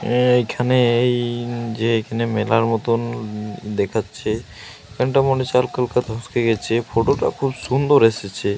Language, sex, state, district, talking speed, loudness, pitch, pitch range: Bengali, male, Jharkhand, Jamtara, 120 wpm, -20 LUFS, 115 Hz, 110-125 Hz